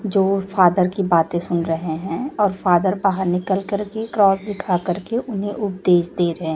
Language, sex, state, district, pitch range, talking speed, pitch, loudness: Hindi, female, Chhattisgarh, Raipur, 175-200 Hz, 175 wpm, 190 Hz, -20 LUFS